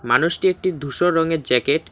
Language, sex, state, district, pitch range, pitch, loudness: Bengali, male, West Bengal, Alipurduar, 145-180 Hz, 165 Hz, -19 LUFS